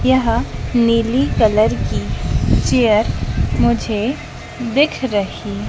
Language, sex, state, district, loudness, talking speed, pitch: Hindi, female, Madhya Pradesh, Dhar, -17 LUFS, 85 wpm, 220 Hz